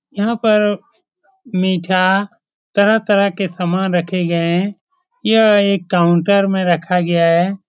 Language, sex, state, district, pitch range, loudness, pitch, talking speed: Hindi, male, Bihar, Supaul, 180-210 Hz, -15 LUFS, 195 Hz, 140 wpm